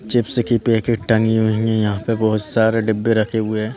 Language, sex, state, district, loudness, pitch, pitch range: Hindi, male, Madhya Pradesh, Bhopal, -18 LUFS, 110 Hz, 110-115 Hz